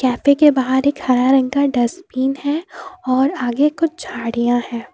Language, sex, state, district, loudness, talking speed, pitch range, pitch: Hindi, female, Jharkhand, Deoghar, -17 LUFS, 155 wpm, 250-295 Hz, 265 Hz